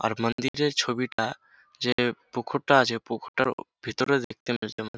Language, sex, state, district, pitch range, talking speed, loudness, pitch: Bengali, male, West Bengal, Jhargram, 115-135 Hz, 145 wpm, -27 LUFS, 120 Hz